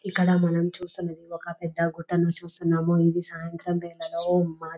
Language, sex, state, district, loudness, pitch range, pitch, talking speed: Telugu, female, Telangana, Nalgonda, -26 LUFS, 170-175 Hz, 170 Hz, 140 wpm